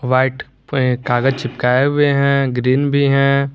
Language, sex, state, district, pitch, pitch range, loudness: Hindi, male, Jharkhand, Garhwa, 135 Hz, 125-140 Hz, -16 LUFS